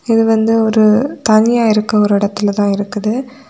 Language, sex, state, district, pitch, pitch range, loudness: Tamil, female, Tamil Nadu, Kanyakumari, 220 Hz, 210-225 Hz, -13 LUFS